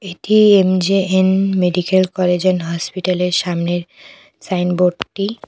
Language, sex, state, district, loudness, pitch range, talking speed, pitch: Bengali, female, West Bengal, Cooch Behar, -16 LUFS, 180-190 Hz, 90 wpm, 185 Hz